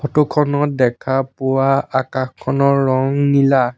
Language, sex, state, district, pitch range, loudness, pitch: Assamese, male, Assam, Sonitpur, 130-140 Hz, -17 LUFS, 135 Hz